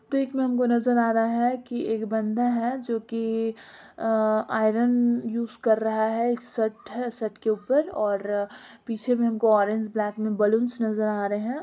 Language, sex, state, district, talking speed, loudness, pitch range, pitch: Hindi, female, Bihar, Gopalganj, 175 wpm, -25 LUFS, 220-240 Hz, 225 Hz